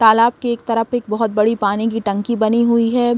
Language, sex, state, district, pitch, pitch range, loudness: Hindi, female, Bihar, Saran, 230 Hz, 220-235 Hz, -17 LUFS